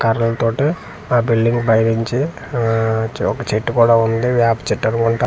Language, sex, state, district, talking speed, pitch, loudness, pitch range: Telugu, male, Andhra Pradesh, Manyam, 150 wpm, 115 Hz, -17 LUFS, 115-120 Hz